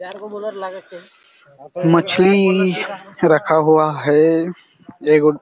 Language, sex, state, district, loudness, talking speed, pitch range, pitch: Hindi, male, Chhattisgarh, Raigarh, -15 LUFS, 65 wpm, 155-190 Hz, 175 Hz